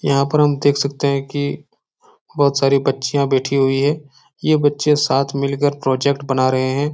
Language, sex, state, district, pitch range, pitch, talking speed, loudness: Hindi, male, Bihar, Supaul, 135-145 Hz, 140 Hz, 180 wpm, -17 LUFS